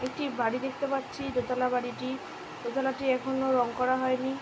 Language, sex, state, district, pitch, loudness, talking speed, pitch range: Bengali, female, West Bengal, Jhargram, 260 Hz, -30 LUFS, 165 wpm, 250-265 Hz